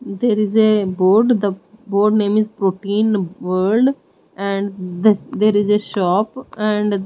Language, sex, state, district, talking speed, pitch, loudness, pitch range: English, female, Odisha, Nuapada, 145 wpm, 210 Hz, -17 LUFS, 195-215 Hz